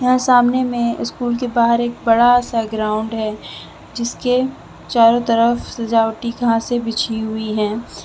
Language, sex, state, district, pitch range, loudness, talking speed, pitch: Hindi, female, Jharkhand, Deoghar, 225-245 Hz, -17 LUFS, 150 wpm, 235 Hz